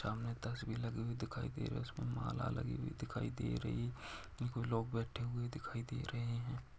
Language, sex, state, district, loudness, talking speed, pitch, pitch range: Hindi, male, Jharkhand, Jamtara, -42 LUFS, 205 wpm, 115 Hz, 105-120 Hz